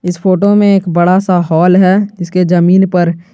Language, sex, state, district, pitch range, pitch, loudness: Hindi, male, Jharkhand, Garhwa, 175-190 Hz, 180 Hz, -10 LUFS